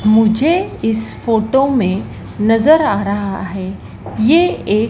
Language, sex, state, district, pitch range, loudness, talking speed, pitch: Hindi, female, Madhya Pradesh, Dhar, 205-270 Hz, -15 LUFS, 120 wpm, 220 Hz